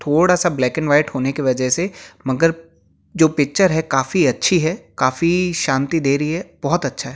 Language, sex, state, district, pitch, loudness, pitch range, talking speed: Hindi, male, Uttar Pradesh, Jyotiba Phule Nagar, 155 Hz, -18 LUFS, 135-175 Hz, 200 wpm